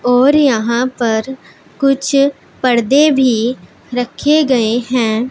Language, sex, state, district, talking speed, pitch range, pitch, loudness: Hindi, female, Punjab, Pathankot, 100 wpm, 235-275 Hz, 255 Hz, -14 LUFS